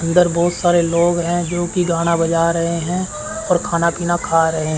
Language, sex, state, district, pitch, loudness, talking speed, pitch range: Hindi, male, Chandigarh, Chandigarh, 170 Hz, -17 LUFS, 200 wpm, 170-175 Hz